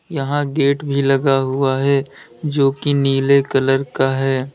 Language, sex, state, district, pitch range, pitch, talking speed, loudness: Hindi, male, Uttar Pradesh, Lalitpur, 135-140 Hz, 135 Hz, 160 wpm, -17 LUFS